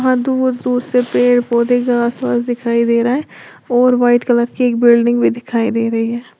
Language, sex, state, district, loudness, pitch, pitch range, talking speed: Hindi, female, Uttar Pradesh, Lalitpur, -15 LUFS, 245 Hz, 235-250 Hz, 185 wpm